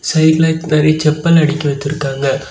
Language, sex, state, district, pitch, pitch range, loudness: Tamil, male, Tamil Nadu, Kanyakumari, 155 Hz, 140-160 Hz, -13 LUFS